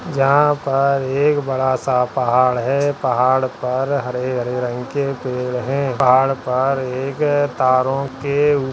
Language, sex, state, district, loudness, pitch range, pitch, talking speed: Hindi, male, Uttarakhand, Tehri Garhwal, -18 LUFS, 125-140 Hz, 130 Hz, 145 wpm